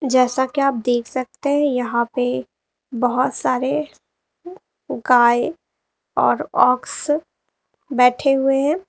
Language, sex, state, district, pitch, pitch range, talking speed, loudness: Hindi, female, Uttar Pradesh, Lalitpur, 260 Hz, 250-290 Hz, 110 wpm, -19 LUFS